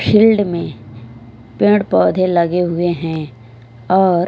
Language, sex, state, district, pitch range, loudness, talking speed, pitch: Hindi, female, Punjab, Fazilka, 120-185 Hz, -15 LUFS, 110 wpm, 170 Hz